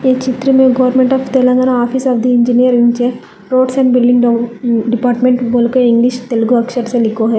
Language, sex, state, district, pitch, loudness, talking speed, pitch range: Hindi, female, Telangana, Hyderabad, 245 Hz, -12 LUFS, 185 wpm, 240-255 Hz